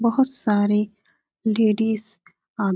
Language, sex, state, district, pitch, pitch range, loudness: Hindi, female, Uttar Pradesh, Etah, 220 Hz, 210-225 Hz, -22 LUFS